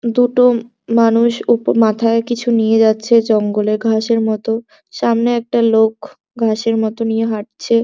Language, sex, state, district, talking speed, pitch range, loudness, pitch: Bengali, male, West Bengal, Jhargram, 145 wpm, 220-235 Hz, -15 LUFS, 230 Hz